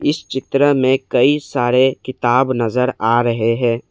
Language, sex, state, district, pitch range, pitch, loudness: Hindi, male, Assam, Kamrup Metropolitan, 120-135 Hz, 130 Hz, -16 LUFS